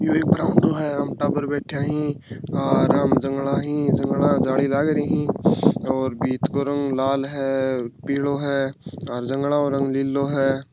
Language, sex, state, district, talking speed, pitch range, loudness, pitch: Marwari, male, Rajasthan, Churu, 175 wpm, 135-145 Hz, -22 LUFS, 140 Hz